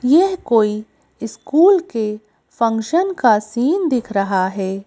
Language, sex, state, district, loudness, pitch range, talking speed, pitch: Hindi, female, Madhya Pradesh, Bhopal, -17 LUFS, 210-320 Hz, 125 wpm, 225 Hz